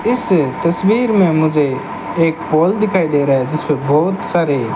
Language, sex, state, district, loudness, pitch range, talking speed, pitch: Hindi, male, Rajasthan, Bikaner, -15 LUFS, 145-185 Hz, 165 wpm, 160 Hz